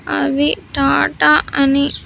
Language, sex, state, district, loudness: Telugu, female, Andhra Pradesh, Sri Satya Sai, -15 LUFS